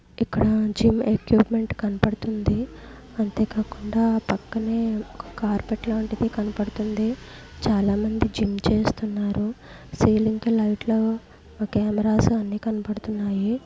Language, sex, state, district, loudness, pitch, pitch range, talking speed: Telugu, female, Andhra Pradesh, Guntur, -24 LUFS, 220 Hz, 210-225 Hz, 85 wpm